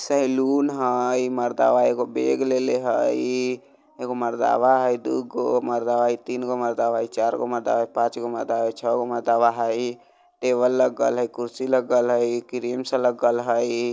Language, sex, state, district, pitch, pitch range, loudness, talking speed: Bajjika, male, Bihar, Vaishali, 120 Hz, 120-125 Hz, -22 LUFS, 180 wpm